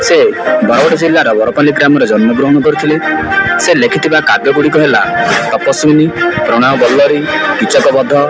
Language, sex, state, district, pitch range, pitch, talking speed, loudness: Odia, male, Odisha, Malkangiri, 145-160 Hz, 150 Hz, 115 wpm, -9 LUFS